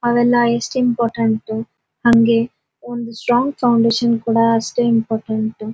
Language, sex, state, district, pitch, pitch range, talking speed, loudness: Kannada, female, Karnataka, Dharwad, 230 Hz, 225-240 Hz, 115 wpm, -17 LUFS